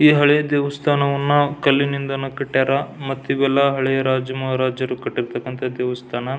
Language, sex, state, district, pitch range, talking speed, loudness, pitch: Kannada, male, Karnataka, Belgaum, 130-140 Hz, 105 wpm, -20 LUFS, 135 Hz